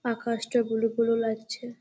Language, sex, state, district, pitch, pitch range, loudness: Bengali, female, West Bengal, Malda, 230 Hz, 225-235 Hz, -28 LUFS